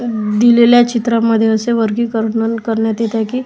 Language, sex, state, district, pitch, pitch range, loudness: Marathi, male, Maharashtra, Washim, 230 Hz, 225-235 Hz, -13 LUFS